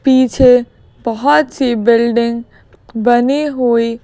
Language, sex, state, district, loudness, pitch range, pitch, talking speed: Hindi, female, Madhya Pradesh, Bhopal, -13 LUFS, 235-260 Hz, 240 Hz, 90 wpm